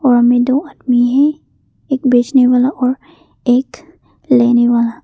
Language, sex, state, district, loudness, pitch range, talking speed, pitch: Hindi, female, Arunachal Pradesh, Papum Pare, -13 LUFS, 245-270 Hz, 130 wpm, 255 Hz